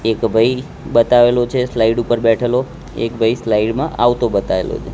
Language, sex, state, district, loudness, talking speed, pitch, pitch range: Gujarati, male, Gujarat, Gandhinagar, -16 LUFS, 160 wpm, 120 Hz, 115-125 Hz